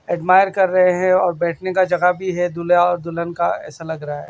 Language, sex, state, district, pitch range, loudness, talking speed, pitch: Hindi, male, Maharashtra, Washim, 170-185 Hz, -18 LUFS, 250 wpm, 175 Hz